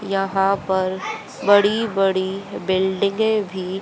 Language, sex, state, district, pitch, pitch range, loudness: Hindi, female, Haryana, Jhajjar, 195 Hz, 190-205 Hz, -20 LUFS